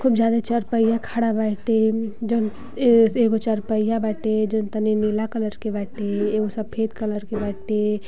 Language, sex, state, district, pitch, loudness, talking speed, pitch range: Bhojpuri, female, Uttar Pradesh, Gorakhpur, 220 Hz, -22 LUFS, 155 wpm, 215-230 Hz